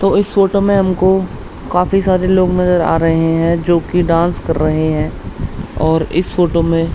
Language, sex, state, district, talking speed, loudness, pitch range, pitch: Hindi, male, Uttarakhand, Tehri Garhwal, 200 wpm, -14 LUFS, 165-185 Hz, 175 Hz